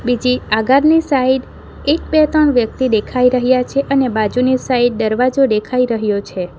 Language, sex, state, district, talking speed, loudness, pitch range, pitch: Gujarati, female, Gujarat, Valsad, 155 wpm, -15 LUFS, 230-270 Hz, 250 Hz